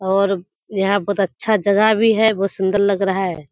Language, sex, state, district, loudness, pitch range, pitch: Hindi, female, Bihar, Kishanganj, -17 LUFS, 190-205 Hz, 200 Hz